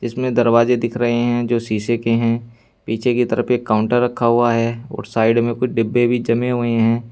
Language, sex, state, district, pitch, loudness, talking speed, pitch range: Hindi, male, Uttar Pradesh, Saharanpur, 120 Hz, -18 LUFS, 220 wpm, 115-120 Hz